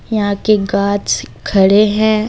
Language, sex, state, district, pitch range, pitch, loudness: Hindi, female, Jharkhand, Deoghar, 195-215 Hz, 200 Hz, -14 LUFS